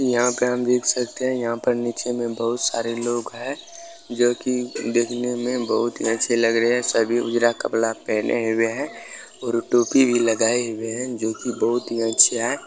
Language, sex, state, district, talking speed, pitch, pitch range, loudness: Hindi, male, Bihar, Bhagalpur, 200 wpm, 120 Hz, 115-125 Hz, -21 LUFS